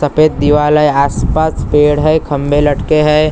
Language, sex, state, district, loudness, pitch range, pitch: Hindi, male, Maharashtra, Gondia, -11 LUFS, 145-155 Hz, 150 Hz